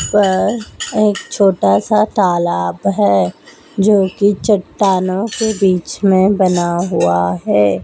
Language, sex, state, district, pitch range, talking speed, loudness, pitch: Hindi, male, Madhya Pradesh, Dhar, 170-205 Hz, 115 wpm, -14 LUFS, 190 Hz